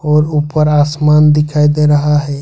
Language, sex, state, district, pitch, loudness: Hindi, male, Jharkhand, Ranchi, 150 Hz, -11 LUFS